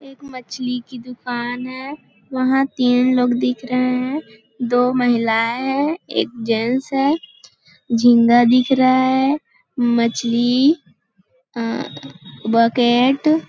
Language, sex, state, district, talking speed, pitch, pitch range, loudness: Hindi, female, Chhattisgarh, Balrampur, 110 wpm, 250 Hz, 235-265 Hz, -18 LUFS